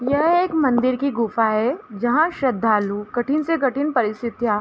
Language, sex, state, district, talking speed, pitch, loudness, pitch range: Hindi, female, Jharkhand, Jamtara, 155 wpm, 250 Hz, -20 LUFS, 225-290 Hz